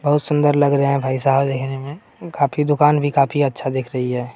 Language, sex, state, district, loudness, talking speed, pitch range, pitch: Maithili, male, Bihar, Araria, -18 LUFS, 235 wpm, 135-145 Hz, 140 Hz